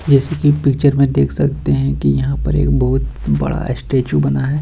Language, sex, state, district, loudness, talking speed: Hindi, male, Bihar, Bhagalpur, -16 LUFS, 210 wpm